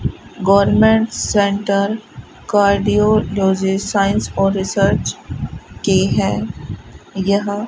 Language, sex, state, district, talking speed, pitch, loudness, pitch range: Hindi, female, Rajasthan, Bikaner, 80 wpm, 200 Hz, -16 LUFS, 195-210 Hz